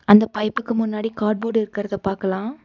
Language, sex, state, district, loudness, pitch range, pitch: Tamil, female, Tamil Nadu, Nilgiris, -21 LUFS, 205-225 Hz, 215 Hz